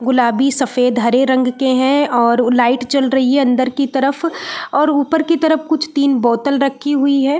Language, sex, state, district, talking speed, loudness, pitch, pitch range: Hindi, female, Uttarakhand, Uttarkashi, 180 wpm, -15 LUFS, 270 Hz, 255-285 Hz